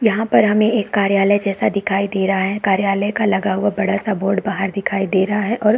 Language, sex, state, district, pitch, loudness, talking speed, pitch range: Hindi, female, Chhattisgarh, Bastar, 200 Hz, -17 LUFS, 260 wpm, 195-210 Hz